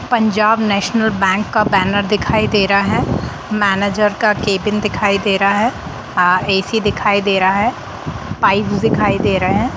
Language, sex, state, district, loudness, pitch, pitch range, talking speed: Hindi, female, Bihar, Sitamarhi, -15 LUFS, 205 Hz, 195-215 Hz, 170 wpm